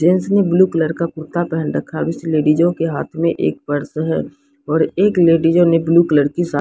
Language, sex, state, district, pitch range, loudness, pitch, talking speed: Hindi, female, Odisha, Sambalpur, 155-175 Hz, -16 LUFS, 165 Hz, 235 wpm